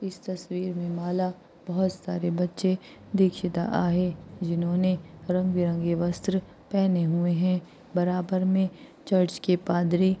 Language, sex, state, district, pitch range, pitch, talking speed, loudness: Hindi, female, Maharashtra, Aurangabad, 175-185 Hz, 180 Hz, 125 wpm, -27 LUFS